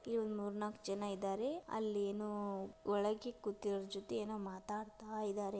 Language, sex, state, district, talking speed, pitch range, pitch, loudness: Kannada, female, Karnataka, Dharwad, 130 wpm, 200-215 Hz, 205 Hz, -42 LUFS